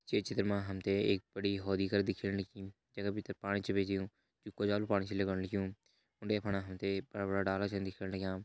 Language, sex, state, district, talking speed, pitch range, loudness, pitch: Hindi, male, Uttarakhand, Uttarkashi, 220 wpm, 95-100 Hz, -37 LUFS, 100 Hz